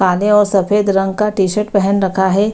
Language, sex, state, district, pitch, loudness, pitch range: Hindi, female, Bihar, Kishanganj, 200 Hz, -14 LUFS, 190-210 Hz